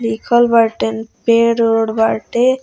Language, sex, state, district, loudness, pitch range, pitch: Bhojpuri, female, Bihar, Muzaffarpur, -14 LUFS, 225-240 Hz, 230 Hz